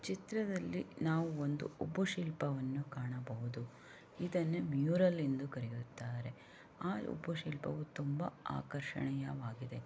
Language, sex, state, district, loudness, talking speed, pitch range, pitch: Kannada, female, Karnataka, Shimoga, -40 LUFS, 85 wpm, 125-165 Hz, 145 Hz